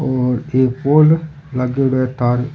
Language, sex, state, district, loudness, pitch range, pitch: Rajasthani, male, Rajasthan, Churu, -16 LUFS, 125-145 Hz, 130 Hz